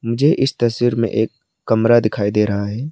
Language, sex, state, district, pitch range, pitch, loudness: Hindi, male, Arunachal Pradesh, Lower Dibang Valley, 110-120 Hz, 115 Hz, -17 LUFS